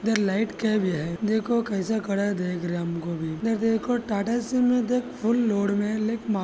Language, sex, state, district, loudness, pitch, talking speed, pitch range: Hindi, male, Maharashtra, Sindhudurg, -25 LUFS, 215 Hz, 205 wpm, 195-225 Hz